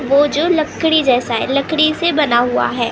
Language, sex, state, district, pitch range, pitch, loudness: Hindi, male, Maharashtra, Gondia, 250-315 Hz, 290 Hz, -15 LUFS